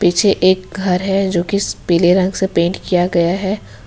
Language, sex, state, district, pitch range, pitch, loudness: Hindi, female, Jharkhand, Ranchi, 175-190 Hz, 185 Hz, -16 LUFS